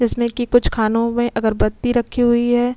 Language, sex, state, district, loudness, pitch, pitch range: Hindi, female, Bihar, Vaishali, -18 LUFS, 240 Hz, 235-245 Hz